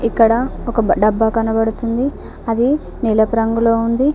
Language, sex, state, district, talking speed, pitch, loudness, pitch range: Telugu, female, Telangana, Mahabubabad, 115 wpm, 230 Hz, -16 LUFS, 225-235 Hz